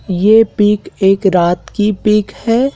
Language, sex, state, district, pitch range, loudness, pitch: Hindi, male, Madhya Pradesh, Dhar, 195-225 Hz, -13 LUFS, 210 Hz